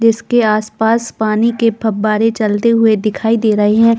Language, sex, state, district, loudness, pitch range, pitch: Hindi, female, Chhattisgarh, Balrampur, -14 LUFS, 215-230 Hz, 225 Hz